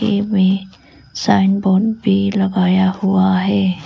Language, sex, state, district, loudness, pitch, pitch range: Hindi, female, Arunachal Pradesh, Lower Dibang Valley, -15 LUFS, 195 Hz, 190-200 Hz